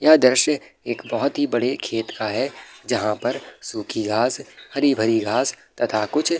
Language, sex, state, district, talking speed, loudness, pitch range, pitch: Hindi, male, Bihar, Madhepura, 170 wpm, -22 LUFS, 115-145 Hz, 135 Hz